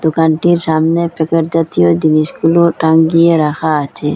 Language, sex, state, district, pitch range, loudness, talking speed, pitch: Bengali, female, Assam, Hailakandi, 155-165 Hz, -12 LUFS, 115 wpm, 160 Hz